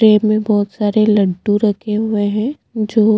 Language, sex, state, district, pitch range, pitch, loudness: Hindi, female, Chhattisgarh, Jashpur, 205-215 Hz, 215 Hz, -16 LUFS